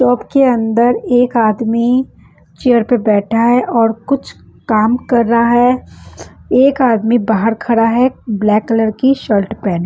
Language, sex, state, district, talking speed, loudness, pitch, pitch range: Hindi, female, Bihar, West Champaran, 160 wpm, -13 LUFS, 235 Hz, 220-250 Hz